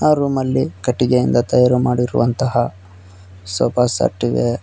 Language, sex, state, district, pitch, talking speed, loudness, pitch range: Kannada, male, Karnataka, Koppal, 120 Hz, 105 wpm, -17 LUFS, 95-125 Hz